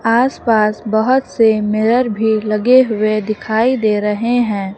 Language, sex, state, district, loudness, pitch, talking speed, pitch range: Hindi, female, Uttar Pradesh, Lucknow, -15 LUFS, 220 Hz, 140 wpm, 215-235 Hz